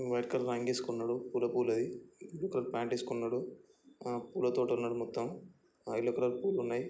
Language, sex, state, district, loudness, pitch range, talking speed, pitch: Telugu, male, Andhra Pradesh, Chittoor, -35 LUFS, 120-125 Hz, 155 wpm, 125 Hz